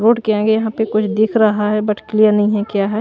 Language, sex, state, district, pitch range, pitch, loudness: Hindi, female, Maharashtra, Washim, 210-220 Hz, 215 Hz, -15 LUFS